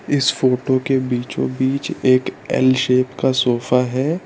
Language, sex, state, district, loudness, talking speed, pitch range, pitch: Hindi, male, Gujarat, Valsad, -18 LUFS, 155 wpm, 125-135 Hz, 130 Hz